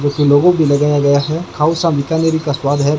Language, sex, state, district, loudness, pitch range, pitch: Hindi, male, Rajasthan, Bikaner, -14 LUFS, 145-160 Hz, 145 Hz